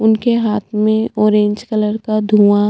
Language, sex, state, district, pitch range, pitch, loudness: Hindi, female, Chhattisgarh, Jashpur, 210-220 Hz, 215 Hz, -15 LUFS